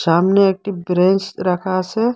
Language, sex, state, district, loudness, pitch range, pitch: Bengali, female, Assam, Hailakandi, -17 LUFS, 180-195 Hz, 185 Hz